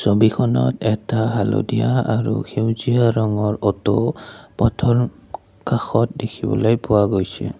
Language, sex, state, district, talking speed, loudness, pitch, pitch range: Assamese, male, Assam, Kamrup Metropolitan, 95 wpm, -19 LUFS, 110 Hz, 105-115 Hz